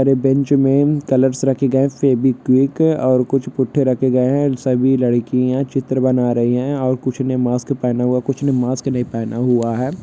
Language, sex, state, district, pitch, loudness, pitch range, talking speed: Hindi, male, Jharkhand, Jamtara, 130 Hz, -17 LUFS, 125-135 Hz, 220 wpm